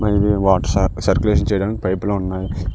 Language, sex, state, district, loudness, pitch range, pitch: Telugu, male, Telangana, Karimnagar, -18 LUFS, 95-105 Hz, 95 Hz